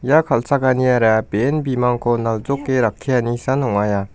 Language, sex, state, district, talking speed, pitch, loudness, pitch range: Garo, male, Meghalaya, West Garo Hills, 85 wpm, 125 Hz, -18 LUFS, 115-135 Hz